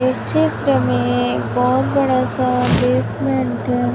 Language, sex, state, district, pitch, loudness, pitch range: Hindi, male, Chhattisgarh, Raipur, 125 Hz, -17 LUFS, 120-130 Hz